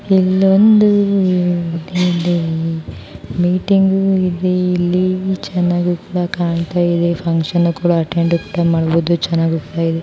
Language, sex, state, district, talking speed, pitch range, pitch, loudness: Kannada, female, Karnataka, Mysore, 60 wpm, 165-185 Hz, 175 Hz, -15 LUFS